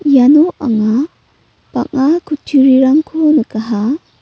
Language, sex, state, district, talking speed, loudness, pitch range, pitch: Garo, female, Meghalaya, North Garo Hills, 70 wpm, -12 LUFS, 250-310 Hz, 280 Hz